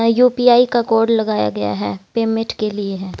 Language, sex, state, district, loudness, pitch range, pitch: Hindi, female, Haryana, Jhajjar, -17 LUFS, 190-235 Hz, 225 Hz